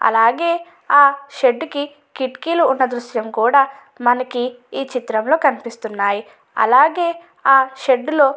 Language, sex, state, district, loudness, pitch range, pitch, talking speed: Telugu, female, Andhra Pradesh, Guntur, -17 LUFS, 245-290 Hz, 265 Hz, 120 wpm